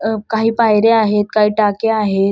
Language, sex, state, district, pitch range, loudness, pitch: Marathi, female, Maharashtra, Solapur, 210-225 Hz, -14 LUFS, 215 Hz